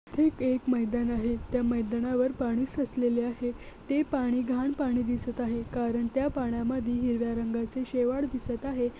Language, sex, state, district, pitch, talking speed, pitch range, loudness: Marathi, female, Maharashtra, Nagpur, 245 Hz, 155 wpm, 240-255 Hz, -29 LUFS